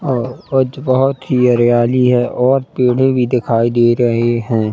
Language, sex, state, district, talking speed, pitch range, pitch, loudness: Hindi, male, Madhya Pradesh, Katni, 165 wpm, 120-130 Hz, 125 Hz, -14 LUFS